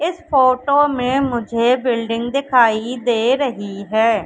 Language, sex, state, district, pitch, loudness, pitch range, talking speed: Hindi, female, Madhya Pradesh, Katni, 245 Hz, -17 LUFS, 230-270 Hz, 125 wpm